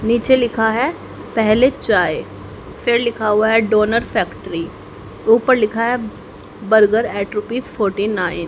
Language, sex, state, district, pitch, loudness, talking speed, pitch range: Hindi, female, Haryana, Jhajjar, 220 Hz, -17 LUFS, 140 wpm, 210-235 Hz